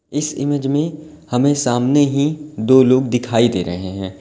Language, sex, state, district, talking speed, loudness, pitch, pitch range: Hindi, male, Uttar Pradesh, Lalitpur, 170 wpm, -17 LUFS, 130 Hz, 120-145 Hz